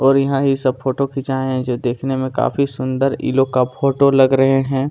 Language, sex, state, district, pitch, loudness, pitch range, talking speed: Hindi, male, Chhattisgarh, Kabirdham, 135 Hz, -17 LUFS, 130-135 Hz, 230 wpm